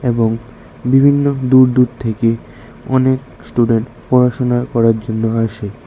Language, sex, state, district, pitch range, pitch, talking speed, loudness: Bengali, male, Tripura, West Tripura, 115-130 Hz, 120 Hz, 110 wpm, -15 LUFS